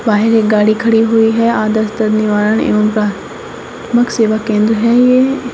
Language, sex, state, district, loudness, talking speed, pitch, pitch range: Hindi, female, Uttar Pradesh, Shamli, -12 LUFS, 195 wpm, 220 Hz, 215-230 Hz